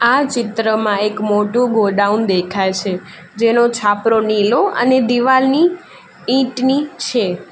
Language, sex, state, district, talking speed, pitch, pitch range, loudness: Gujarati, female, Gujarat, Valsad, 110 wpm, 225 Hz, 205-255 Hz, -15 LUFS